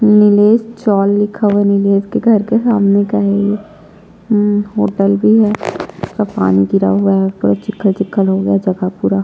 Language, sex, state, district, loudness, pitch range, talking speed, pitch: Hindi, female, Chhattisgarh, Jashpur, -13 LUFS, 195-210 Hz, 175 wpm, 205 Hz